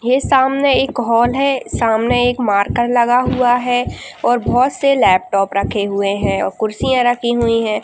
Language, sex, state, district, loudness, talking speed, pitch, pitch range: Hindi, female, Bihar, Jamui, -15 LUFS, 175 wpm, 240 Hz, 220-255 Hz